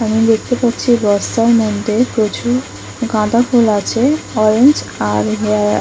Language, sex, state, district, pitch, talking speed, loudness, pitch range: Bengali, female, West Bengal, Kolkata, 225 Hz, 125 wpm, -14 LUFS, 210-240 Hz